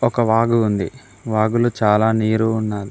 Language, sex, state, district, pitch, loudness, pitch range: Telugu, male, Telangana, Mahabubabad, 110 Hz, -18 LUFS, 105-115 Hz